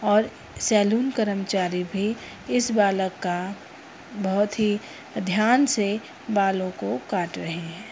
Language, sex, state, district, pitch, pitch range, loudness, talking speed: Hindi, female, Bihar, Purnia, 205 Hz, 190-215 Hz, -24 LUFS, 120 wpm